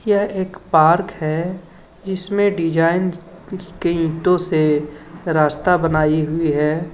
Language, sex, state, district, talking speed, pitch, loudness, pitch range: Hindi, male, Jharkhand, Ranchi, 110 wpm, 170 Hz, -18 LUFS, 155-185 Hz